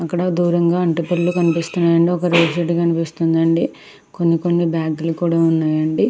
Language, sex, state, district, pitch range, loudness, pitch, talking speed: Telugu, female, Andhra Pradesh, Krishna, 165-175 Hz, -17 LUFS, 170 Hz, 130 wpm